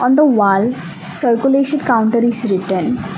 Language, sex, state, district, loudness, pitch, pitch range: English, female, Assam, Kamrup Metropolitan, -15 LUFS, 235 Hz, 200-260 Hz